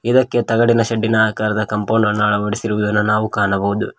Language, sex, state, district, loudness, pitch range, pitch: Kannada, male, Karnataka, Koppal, -17 LUFS, 105-115 Hz, 105 Hz